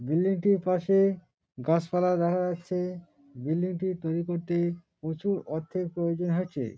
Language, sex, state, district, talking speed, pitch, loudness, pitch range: Bengali, male, West Bengal, Dakshin Dinajpur, 140 wpm, 175 Hz, -28 LUFS, 165-180 Hz